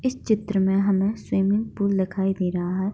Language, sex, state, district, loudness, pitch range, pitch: Hindi, female, Bihar, Begusarai, -23 LUFS, 190-205 Hz, 195 Hz